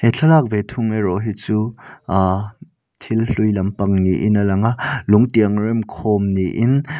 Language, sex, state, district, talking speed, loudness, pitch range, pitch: Mizo, male, Mizoram, Aizawl, 170 wpm, -18 LUFS, 100-115 Hz, 110 Hz